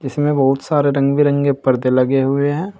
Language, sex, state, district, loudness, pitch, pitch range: Hindi, male, Uttar Pradesh, Saharanpur, -16 LUFS, 140 Hz, 135-145 Hz